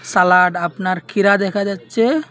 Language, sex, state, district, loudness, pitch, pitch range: Bengali, male, Assam, Hailakandi, -16 LUFS, 195 Hz, 180-200 Hz